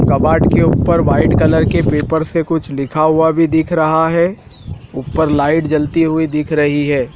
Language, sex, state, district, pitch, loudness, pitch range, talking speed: Hindi, male, Madhya Pradesh, Dhar, 160 Hz, -14 LUFS, 150-160 Hz, 185 wpm